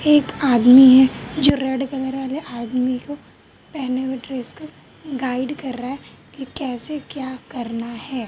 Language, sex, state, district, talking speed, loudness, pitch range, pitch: Hindi, female, Maharashtra, Mumbai Suburban, 160 wpm, -19 LUFS, 250-280 Hz, 265 Hz